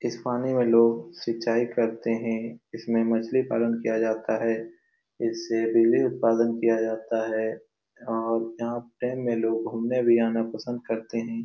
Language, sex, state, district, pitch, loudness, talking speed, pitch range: Hindi, male, Bihar, Supaul, 115 Hz, -26 LUFS, 155 wpm, 115-120 Hz